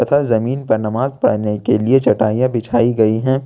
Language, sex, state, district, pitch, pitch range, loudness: Hindi, male, Jharkhand, Ranchi, 120 Hz, 110-130 Hz, -16 LUFS